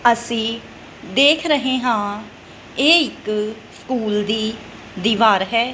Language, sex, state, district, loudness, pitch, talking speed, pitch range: Punjabi, female, Punjab, Kapurthala, -18 LUFS, 230 Hz, 105 wpm, 215-255 Hz